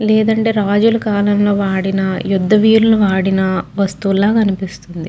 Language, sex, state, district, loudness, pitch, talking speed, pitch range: Telugu, female, Andhra Pradesh, Guntur, -14 LUFS, 200 Hz, 120 wpm, 190-215 Hz